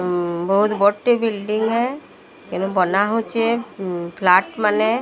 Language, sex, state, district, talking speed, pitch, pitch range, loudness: Odia, female, Odisha, Sambalpur, 130 wpm, 210 Hz, 185-225 Hz, -19 LUFS